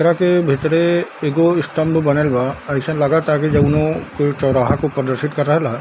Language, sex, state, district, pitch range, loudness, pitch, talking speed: Hindi, male, Bihar, Darbhanga, 140-160 Hz, -17 LUFS, 150 Hz, 175 wpm